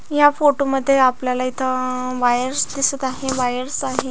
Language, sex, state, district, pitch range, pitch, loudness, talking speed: Marathi, female, Maharashtra, Aurangabad, 255-275 Hz, 260 Hz, -19 LUFS, 130 wpm